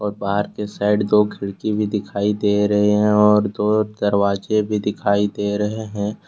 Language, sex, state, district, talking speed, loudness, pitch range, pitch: Hindi, male, Jharkhand, Deoghar, 170 wpm, -19 LUFS, 100-105 Hz, 105 Hz